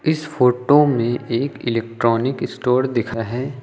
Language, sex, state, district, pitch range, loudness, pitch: Hindi, male, Uttar Pradesh, Lucknow, 115-140 Hz, -19 LUFS, 125 Hz